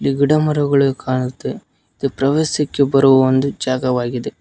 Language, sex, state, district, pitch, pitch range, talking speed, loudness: Kannada, male, Karnataka, Koppal, 135 Hz, 130-140 Hz, 95 wpm, -17 LUFS